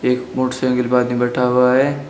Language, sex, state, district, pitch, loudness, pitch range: Hindi, male, Uttar Pradesh, Shamli, 125 Hz, -17 LUFS, 125-130 Hz